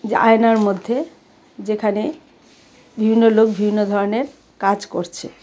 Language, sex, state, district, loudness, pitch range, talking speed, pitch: Bengali, female, Tripura, West Tripura, -18 LUFS, 200-225 Hz, 100 wpm, 215 Hz